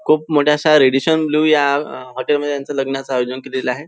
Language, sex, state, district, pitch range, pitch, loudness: Marathi, male, Maharashtra, Nagpur, 130-150 Hz, 145 Hz, -16 LUFS